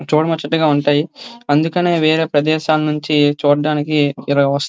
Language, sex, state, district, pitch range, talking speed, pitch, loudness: Telugu, male, Andhra Pradesh, Srikakulam, 145-160 Hz, 100 wpm, 150 Hz, -16 LUFS